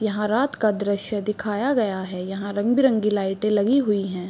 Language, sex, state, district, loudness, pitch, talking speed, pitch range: Hindi, female, Chhattisgarh, Bilaspur, -22 LUFS, 210 Hz, 195 wpm, 200-220 Hz